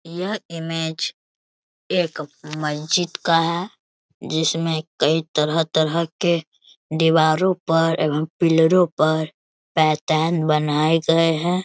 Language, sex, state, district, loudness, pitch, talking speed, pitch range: Hindi, male, Bihar, Bhagalpur, -20 LUFS, 165 Hz, 100 wpm, 155-170 Hz